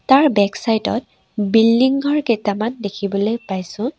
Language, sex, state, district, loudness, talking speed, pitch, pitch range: Assamese, female, Assam, Sonitpur, -18 LUFS, 135 wpm, 225 Hz, 205-250 Hz